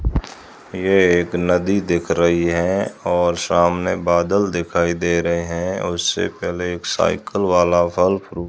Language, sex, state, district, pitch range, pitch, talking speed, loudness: Hindi, male, Rajasthan, Jaisalmer, 85-90 Hz, 85 Hz, 150 wpm, -19 LUFS